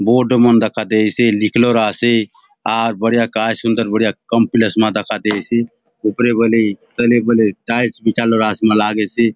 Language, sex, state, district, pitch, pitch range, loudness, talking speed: Halbi, male, Chhattisgarh, Bastar, 115 Hz, 110-115 Hz, -15 LUFS, 165 wpm